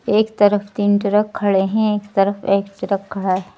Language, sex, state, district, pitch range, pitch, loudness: Hindi, female, Madhya Pradesh, Bhopal, 195-210 Hz, 205 Hz, -18 LUFS